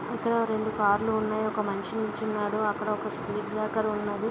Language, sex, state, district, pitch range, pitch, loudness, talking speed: Telugu, female, Andhra Pradesh, Visakhapatnam, 210-220 Hz, 215 Hz, -28 LUFS, 195 wpm